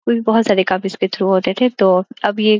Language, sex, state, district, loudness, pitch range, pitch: Hindi, female, Uttar Pradesh, Gorakhpur, -16 LUFS, 190-225 Hz, 205 Hz